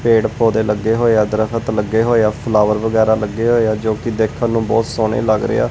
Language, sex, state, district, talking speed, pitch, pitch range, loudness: Punjabi, male, Punjab, Kapurthala, 240 wpm, 110 Hz, 110-115 Hz, -16 LUFS